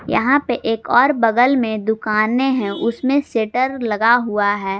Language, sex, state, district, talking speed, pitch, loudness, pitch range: Hindi, female, Jharkhand, Garhwa, 165 wpm, 230 Hz, -17 LUFS, 215-255 Hz